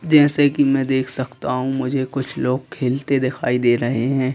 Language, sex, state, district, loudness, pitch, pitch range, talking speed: Hindi, male, Madhya Pradesh, Bhopal, -19 LUFS, 130 Hz, 125-135 Hz, 195 wpm